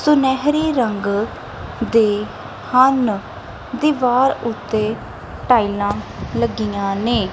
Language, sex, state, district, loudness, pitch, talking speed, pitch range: Punjabi, female, Punjab, Kapurthala, -18 LUFS, 225 Hz, 75 wpm, 205-255 Hz